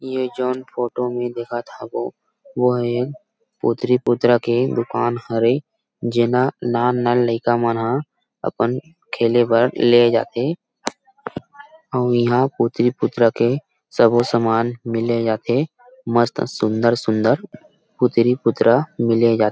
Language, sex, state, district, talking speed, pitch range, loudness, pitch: Chhattisgarhi, male, Chhattisgarh, Rajnandgaon, 140 wpm, 115-130 Hz, -19 LUFS, 120 Hz